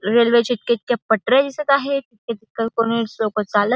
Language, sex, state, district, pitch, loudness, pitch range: Marathi, female, Maharashtra, Aurangabad, 230 Hz, -19 LUFS, 220-245 Hz